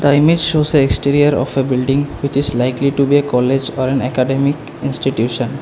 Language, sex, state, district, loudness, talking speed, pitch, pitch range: English, male, Assam, Kamrup Metropolitan, -15 LUFS, 200 wpm, 140 Hz, 130-145 Hz